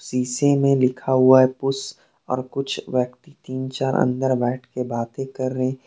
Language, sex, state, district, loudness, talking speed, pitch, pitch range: Hindi, male, Jharkhand, Deoghar, -21 LUFS, 185 wpm, 130 Hz, 125-135 Hz